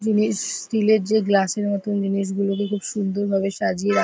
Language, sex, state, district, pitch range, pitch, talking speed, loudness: Bengali, female, West Bengal, Paschim Medinipur, 195-215 Hz, 205 Hz, 190 wpm, -22 LUFS